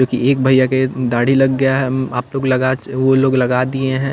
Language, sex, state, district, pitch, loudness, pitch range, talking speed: Hindi, male, Chandigarh, Chandigarh, 130 Hz, -15 LUFS, 130-135 Hz, 260 wpm